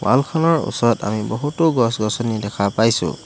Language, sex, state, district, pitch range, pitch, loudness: Assamese, male, Assam, Hailakandi, 105-145 Hz, 115 Hz, -19 LUFS